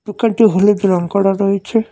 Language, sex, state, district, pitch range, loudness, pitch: Bengali, male, West Bengal, Cooch Behar, 195-220 Hz, -14 LUFS, 205 Hz